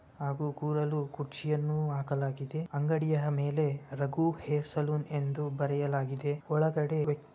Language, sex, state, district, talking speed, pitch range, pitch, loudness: Kannada, male, Karnataka, Bellary, 100 wpm, 140-150 Hz, 150 Hz, -32 LUFS